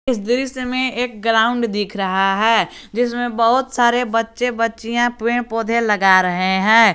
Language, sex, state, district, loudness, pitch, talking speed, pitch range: Hindi, male, Jharkhand, Garhwa, -17 LUFS, 230 Hz, 155 wpm, 220-245 Hz